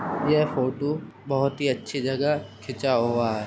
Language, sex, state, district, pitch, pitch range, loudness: Hindi, male, Uttar Pradesh, Jyotiba Phule Nagar, 135 Hz, 120-145 Hz, -25 LUFS